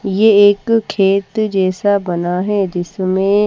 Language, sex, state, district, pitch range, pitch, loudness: Hindi, female, Bihar, Patna, 185-205 Hz, 195 Hz, -14 LUFS